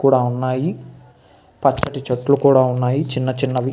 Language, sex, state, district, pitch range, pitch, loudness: Telugu, male, Andhra Pradesh, Visakhapatnam, 125-135 Hz, 130 Hz, -18 LUFS